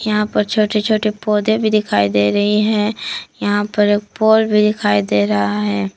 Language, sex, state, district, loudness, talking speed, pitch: Hindi, female, Jharkhand, Palamu, -16 LUFS, 190 wpm, 210 Hz